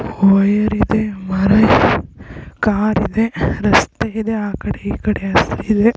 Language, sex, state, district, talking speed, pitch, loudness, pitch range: Kannada, female, Karnataka, Raichur, 100 wpm, 210 Hz, -16 LUFS, 200-220 Hz